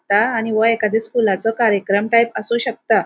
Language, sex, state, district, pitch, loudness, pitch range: Konkani, female, Goa, North and South Goa, 225 Hz, -17 LUFS, 210-230 Hz